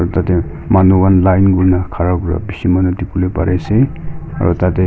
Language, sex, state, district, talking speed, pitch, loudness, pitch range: Nagamese, male, Nagaland, Kohima, 175 wpm, 90 Hz, -14 LUFS, 90-95 Hz